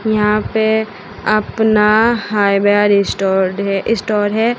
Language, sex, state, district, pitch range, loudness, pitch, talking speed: Hindi, female, Uttar Pradesh, Shamli, 200-220 Hz, -14 LUFS, 210 Hz, 90 wpm